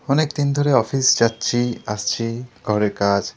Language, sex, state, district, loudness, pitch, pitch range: Bengali, male, West Bengal, Kolkata, -20 LUFS, 120 Hz, 105-135 Hz